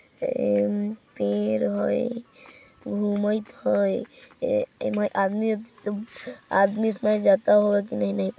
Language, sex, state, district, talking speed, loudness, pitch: Hindi, female, Bihar, Vaishali, 105 wpm, -25 LUFS, 205 Hz